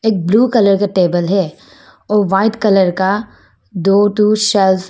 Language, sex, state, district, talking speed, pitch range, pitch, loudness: Hindi, female, Arunachal Pradesh, Papum Pare, 160 wpm, 190-210 Hz, 200 Hz, -13 LUFS